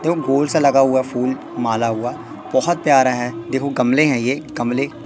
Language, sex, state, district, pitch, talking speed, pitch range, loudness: Hindi, male, Madhya Pradesh, Katni, 130 Hz, 190 wpm, 120-145 Hz, -18 LUFS